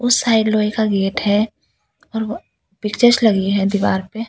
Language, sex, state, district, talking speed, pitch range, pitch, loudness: Hindi, female, Delhi, New Delhi, 195 wpm, 200-225 Hz, 215 Hz, -17 LUFS